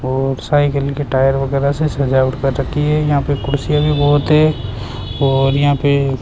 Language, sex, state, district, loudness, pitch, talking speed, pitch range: Hindi, male, Rajasthan, Jaipur, -16 LUFS, 140 Hz, 195 wpm, 135-145 Hz